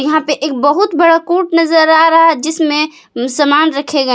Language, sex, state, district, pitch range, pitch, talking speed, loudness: Hindi, female, Jharkhand, Palamu, 290-330 Hz, 310 Hz, 190 wpm, -11 LUFS